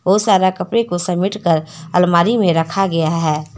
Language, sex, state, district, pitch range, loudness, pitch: Hindi, female, Jharkhand, Deoghar, 165-195 Hz, -16 LUFS, 175 Hz